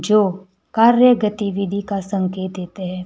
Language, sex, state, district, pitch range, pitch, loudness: Hindi, male, Himachal Pradesh, Shimla, 185-210 Hz, 195 Hz, -18 LUFS